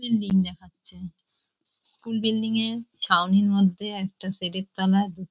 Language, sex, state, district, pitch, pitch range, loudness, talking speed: Bengali, female, West Bengal, Jhargram, 190 Hz, 185-220 Hz, -24 LUFS, 145 wpm